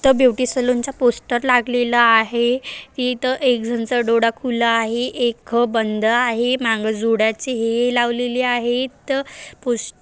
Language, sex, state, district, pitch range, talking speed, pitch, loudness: Marathi, female, Maharashtra, Aurangabad, 230-250 Hz, 120 wpm, 240 Hz, -18 LUFS